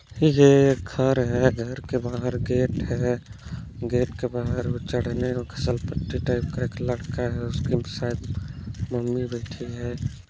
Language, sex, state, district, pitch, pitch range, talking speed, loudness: Hindi, female, Chhattisgarh, Balrampur, 125 Hz, 120-125 Hz, 140 wpm, -25 LUFS